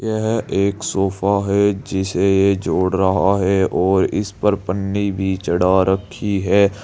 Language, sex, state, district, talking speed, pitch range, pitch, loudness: Hindi, male, Uttar Pradesh, Saharanpur, 150 wpm, 95-100 Hz, 95 Hz, -18 LUFS